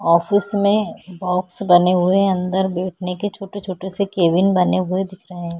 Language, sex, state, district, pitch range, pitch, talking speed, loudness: Hindi, female, Chhattisgarh, Korba, 180-195 Hz, 185 Hz, 180 wpm, -18 LUFS